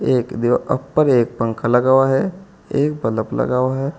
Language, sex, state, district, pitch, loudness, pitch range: Hindi, male, Uttar Pradesh, Saharanpur, 130 Hz, -18 LUFS, 120-140 Hz